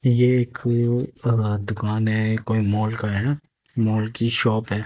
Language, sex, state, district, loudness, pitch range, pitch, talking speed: Hindi, male, Haryana, Jhajjar, -21 LUFS, 110-120 Hz, 110 Hz, 175 wpm